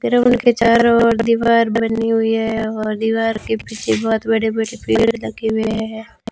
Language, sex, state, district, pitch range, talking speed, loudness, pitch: Hindi, female, Rajasthan, Bikaner, 220-230 Hz, 180 wpm, -17 LUFS, 225 Hz